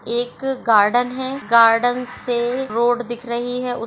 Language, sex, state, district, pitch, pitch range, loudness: Hindi, female, Bihar, Sitamarhi, 245 Hz, 235-250 Hz, -19 LUFS